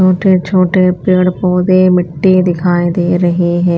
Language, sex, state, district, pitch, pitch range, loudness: Hindi, female, Chhattisgarh, Raipur, 180 Hz, 175-185 Hz, -11 LUFS